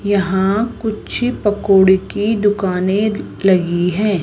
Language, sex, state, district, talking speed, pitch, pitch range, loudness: Hindi, female, Rajasthan, Jaipur, 100 wpm, 200 Hz, 190-210 Hz, -16 LUFS